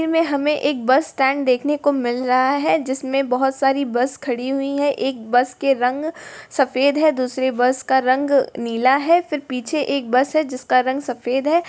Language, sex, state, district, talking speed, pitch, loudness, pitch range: Hindi, female, Bihar, East Champaran, 200 wpm, 270 Hz, -19 LUFS, 255-285 Hz